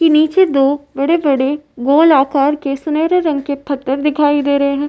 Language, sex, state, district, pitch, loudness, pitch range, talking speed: Hindi, female, Uttar Pradesh, Varanasi, 285 Hz, -14 LUFS, 275-305 Hz, 185 wpm